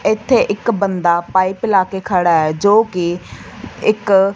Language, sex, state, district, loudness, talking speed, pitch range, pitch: Punjabi, female, Punjab, Fazilka, -15 LUFS, 150 wpm, 180-205 Hz, 190 Hz